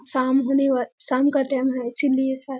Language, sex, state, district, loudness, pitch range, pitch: Hindi, female, Bihar, Kishanganj, -22 LUFS, 260-275 Hz, 265 Hz